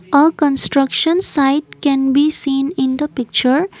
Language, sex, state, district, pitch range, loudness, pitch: English, female, Assam, Kamrup Metropolitan, 270-300 Hz, -15 LUFS, 280 Hz